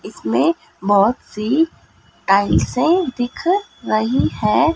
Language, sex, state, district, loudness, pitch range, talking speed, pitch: Hindi, female, Madhya Pradesh, Dhar, -18 LUFS, 210-325 Hz, 100 wpm, 250 Hz